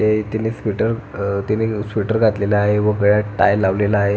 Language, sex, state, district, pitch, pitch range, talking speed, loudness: Marathi, male, Maharashtra, Pune, 105 Hz, 100-110 Hz, 185 wpm, -18 LUFS